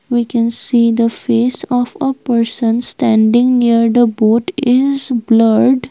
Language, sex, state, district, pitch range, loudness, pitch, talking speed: English, female, Assam, Kamrup Metropolitan, 230-250 Hz, -13 LUFS, 240 Hz, 140 wpm